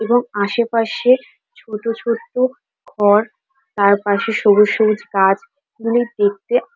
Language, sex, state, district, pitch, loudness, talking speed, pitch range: Bengali, female, West Bengal, Dakshin Dinajpur, 225 Hz, -17 LUFS, 105 wpm, 205-245 Hz